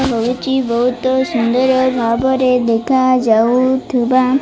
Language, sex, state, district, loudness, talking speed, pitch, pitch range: Odia, female, Odisha, Malkangiri, -14 LUFS, 110 wpm, 255 Hz, 240-260 Hz